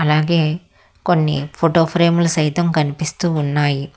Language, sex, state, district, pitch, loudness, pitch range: Telugu, female, Telangana, Hyderabad, 160 Hz, -17 LUFS, 150-170 Hz